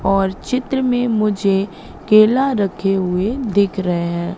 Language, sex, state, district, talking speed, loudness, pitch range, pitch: Hindi, female, Madhya Pradesh, Katni, 135 wpm, -17 LUFS, 190-235 Hz, 200 Hz